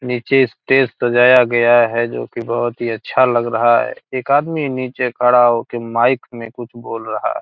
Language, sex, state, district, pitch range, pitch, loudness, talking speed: Hindi, male, Bihar, Gopalganj, 120-125 Hz, 120 Hz, -15 LUFS, 195 wpm